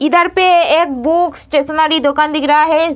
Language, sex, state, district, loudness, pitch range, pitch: Hindi, female, Bihar, Muzaffarpur, -12 LUFS, 300-340 Hz, 315 Hz